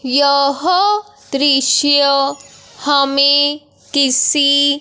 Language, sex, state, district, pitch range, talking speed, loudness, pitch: Hindi, female, Punjab, Fazilka, 275-290 Hz, 50 wpm, -13 LUFS, 285 Hz